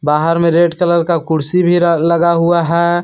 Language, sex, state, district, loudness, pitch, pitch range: Hindi, male, Jharkhand, Palamu, -13 LUFS, 170 Hz, 165-175 Hz